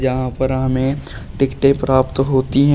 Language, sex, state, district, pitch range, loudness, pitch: Hindi, male, Uttar Pradesh, Shamli, 130-135 Hz, -17 LUFS, 130 Hz